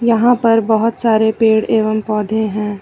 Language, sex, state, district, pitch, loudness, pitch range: Hindi, female, Uttar Pradesh, Lucknow, 220 Hz, -14 LUFS, 215-230 Hz